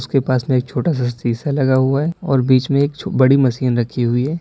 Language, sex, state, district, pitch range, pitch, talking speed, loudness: Hindi, male, Uttar Pradesh, Lalitpur, 125-140 Hz, 130 Hz, 260 wpm, -17 LUFS